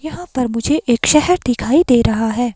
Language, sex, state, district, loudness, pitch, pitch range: Hindi, female, Himachal Pradesh, Shimla, -15 LUFS, 250 Hz, 235-305 Hz